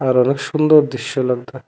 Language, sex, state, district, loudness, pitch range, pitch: Bengali, male, Tripura, West Tripura, -16 LUFS, 125-145 Hz, 130 Hz